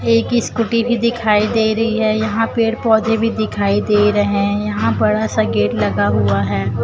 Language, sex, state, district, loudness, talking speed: Hindi, female, Chhattisgarh, Raipur, -16 LUFS, 195 wpm